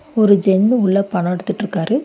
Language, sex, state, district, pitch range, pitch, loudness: Tamil, female, Tamil Nadu, Nilgiris, 190-220 Hz, 205 Hz, -16 LUFS